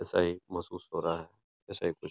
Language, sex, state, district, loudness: Hindi, male, Uttar Pradesh, Etah, -35 LUFS